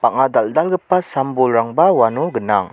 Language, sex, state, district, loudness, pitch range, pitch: Garo, male, Meghalaya, West Garo Hills, -16 LUFS, 120-175 Hz, 135 Hz